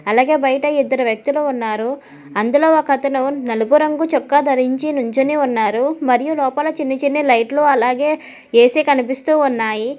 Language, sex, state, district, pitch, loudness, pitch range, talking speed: Telugu, female, Telangana, Hyderabad, 275 Hz, -16 LUFS, 245-290 Hz, 140 wpm